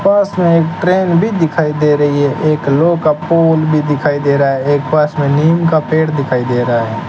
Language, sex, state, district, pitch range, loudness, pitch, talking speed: Hindi, male, Rajasthan, Bikaner, 145-165 Hz, -13 LUFS, 150 Hz, 235 wpm